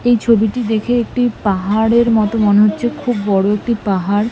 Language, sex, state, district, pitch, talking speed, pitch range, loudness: Bengali, female, West Bengal, Malda, 220 Hz, 165 wpm, 205-235 Hz, -15 LUFS